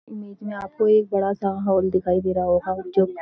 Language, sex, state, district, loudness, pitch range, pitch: Hindi, female, Uttarakhand, Uttarkashi, -21 LUFS, 185-205 Hz, 195 Hz